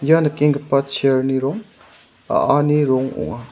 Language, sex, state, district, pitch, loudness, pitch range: Garo, male, Meghalaya, West Garo Hills, 140 Hz, -18 LUFS, 135-150 Hz